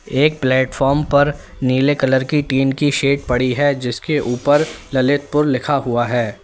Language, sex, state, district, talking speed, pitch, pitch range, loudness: Hindi, male, Uttar Pradesh, Lalitpur, 160 wpm, 135 Hz, 130-145 Hz, -17 LUFS